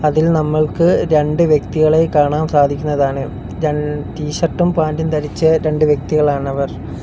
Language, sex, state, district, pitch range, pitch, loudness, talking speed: Malayalam, male, Kerala, Kollam, 145-155 Hz, 150 Hz, -16 LUFS, 110 wpm